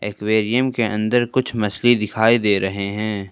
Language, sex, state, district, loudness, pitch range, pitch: Hindi, male, Jharkhand, Ranchi, -19 LUFS, 105-120 Hz, 110 Hz